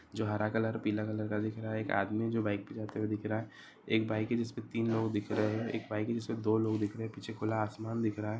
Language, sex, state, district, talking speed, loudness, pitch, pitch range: Marwari, male, Rajasthan, Nagaur, 220 wpm, -35 LUFS, 110 Hz, 105-110 Hz